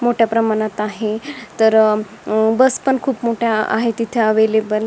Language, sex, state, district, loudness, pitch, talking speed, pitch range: Marathi, female, Maharashtra, Dhule, -17 LUFS, 220 Hz, 150 wpm, 215-235 Hz